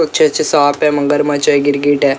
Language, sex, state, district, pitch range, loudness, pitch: Hindi, male, Maharashtra, Mumbai Suburban, 145-150 Hz, -13 LUFS, 145 Hz